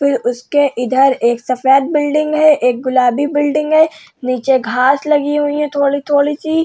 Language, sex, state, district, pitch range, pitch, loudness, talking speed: Hindi, female, Uttar Pradesh, Hamirpur, 255-295 Hz, 285 Hz, -14 LUFS, 170 wpm